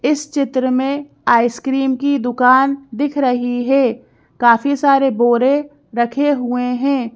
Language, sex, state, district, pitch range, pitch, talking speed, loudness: Hindi, female, Madhya Pradesh, Bhopal, 245-280 Hz, 265 Hz, 125 wpm, -16 LUFS